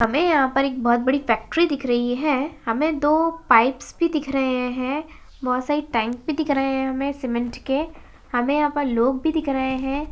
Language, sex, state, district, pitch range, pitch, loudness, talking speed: Hindi, female, Maharashtra, Chandrapur, 250-300 Hz, 270 Hz, -22 LUFS, 210 wpm